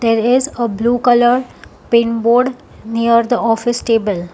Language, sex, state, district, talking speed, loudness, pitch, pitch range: English, female, Telangana, Hyderabad, 150 wpm, -14 LUFS, 235 Hz, 230-245 Hz